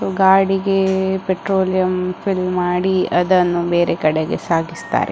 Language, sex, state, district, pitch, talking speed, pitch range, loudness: Kannada, female, Karnataka, Dakshina Kannada, 185 Hz, 95 wpm, 175-190 Hz, -17 LUFS